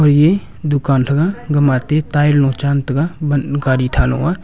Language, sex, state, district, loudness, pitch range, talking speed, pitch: Wancho, male, Arunachal Pradesh, Longding, -15 LUFS, 135-150 Hz, 190 wpm, 145 Hz